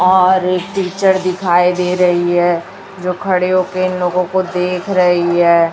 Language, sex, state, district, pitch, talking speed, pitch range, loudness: Hindi, male, Chhattisgarh, Raipur, 180 Hz, 170 wpm, 175-185 Hz, -14 LUFS